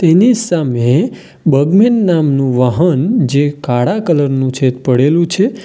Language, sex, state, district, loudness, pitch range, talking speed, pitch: Gujarati, male, Gujarat, Valsad, -12 LUFS, 130-180 Hz, 125 wpm, 145 Hz